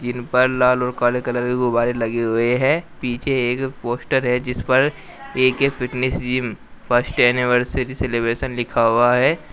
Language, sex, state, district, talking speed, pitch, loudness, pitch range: Hindi, male, Uttar Pradesh, Shamli, 165 wpm, 125 Hz, -19 LUFS, 120-130 Hz